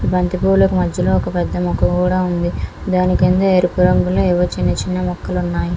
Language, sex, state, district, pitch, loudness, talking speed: Telugu, female, Andhra Pradesh, Visakhapatnam, 175 Hz, -16 LUFS, 155 wpm